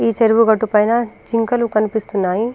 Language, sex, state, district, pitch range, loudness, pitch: Telugu, female, Telangana, Karimnagar, 215-230 Hz, -16 LUFS, 225 Hz